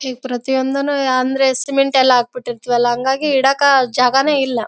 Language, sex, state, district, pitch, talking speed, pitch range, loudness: Kannada, female, Karnataka, Bellary, 265 Hz, 130 wpm, 250-275 Hz, -15 LUFS